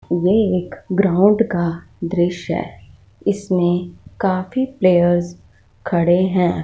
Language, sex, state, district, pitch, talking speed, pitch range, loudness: Hindi, female, Punjab, Fazilka, 180 Hz, 100 wpm, 175-190 Hz, -18 LUFS